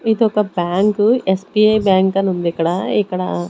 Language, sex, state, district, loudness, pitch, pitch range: Telugu, female, Andhra Pradesh, Sri Satya Sai, -16 LUFS, 195 Hz, 185-215 Hz